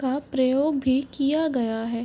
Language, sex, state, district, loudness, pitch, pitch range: Hindi, female, Uttar Pradesh, Varanasi, -24 LUFS, 265 Hz, 255-285 Hz